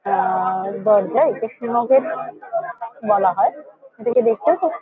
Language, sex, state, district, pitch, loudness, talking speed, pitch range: Bengali, female, West Bengal, Kolkata, 235 Hz, -19 LUFS, 160 wpm, 210-320 Hz